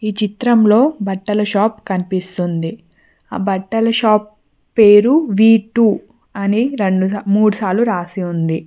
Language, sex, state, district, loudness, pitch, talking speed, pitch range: Telugu, female, Telangana, Mahabubabad, -15 LUFS, 210 Hz, 110 wpm, 190-225 Hz